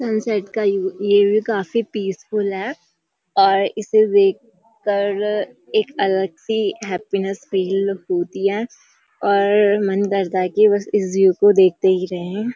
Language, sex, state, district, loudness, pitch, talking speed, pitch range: Hindi, female, Uttarakhand, Uttarkashi, -18 LUFS, 200 Hz, 150 wpm, 195-215 Hz